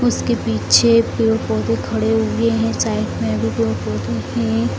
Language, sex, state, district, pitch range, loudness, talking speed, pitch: Hindi, female, Bihar, Jamui, 105-115 Hz, -18 LUFS, 140 wpm, 110 Hz